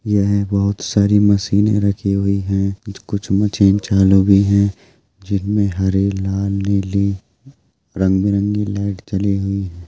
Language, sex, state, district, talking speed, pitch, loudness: Hindi, male, Uttar Pradesh, Jyotiba Phule Nagar, 135 wpm, 100 Hz, -17 LUFS